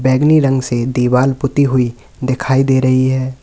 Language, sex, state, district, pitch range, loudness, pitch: Hindi, male, Uttar Pradesh, Lalitpur, 125-135 Hz, -14 LUFS, 130 Hz